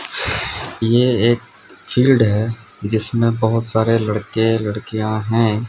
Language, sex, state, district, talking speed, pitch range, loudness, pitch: Hindi, male, Odisha, Sambalpur, 105 wpm, 110-115 Hz, -18 LUFS, 115 Hz